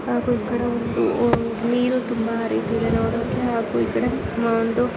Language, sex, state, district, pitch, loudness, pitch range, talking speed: Kannada, female, Karnataka, Dharwad, 235 Hz, -22 LUFS, 230-245 Hz, 155 wpm